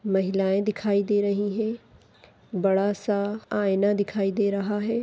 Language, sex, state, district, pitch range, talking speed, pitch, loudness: Hindi, female, Rajasthan, Nagaur, 195-210 Hz, 145 wpm, 205 Hz, -25 LUFS